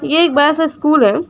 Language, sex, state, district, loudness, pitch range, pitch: Hindi, female, West Bengal, Alipurduar, -13 LUFS, 300-330 Hz, 310 Hz